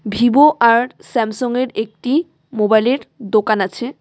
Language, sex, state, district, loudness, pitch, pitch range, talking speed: Bengali, female, West Bengal, Cooch Behar, -16 LUFS, 235 Hz, 215-255 Hz, 120 wpm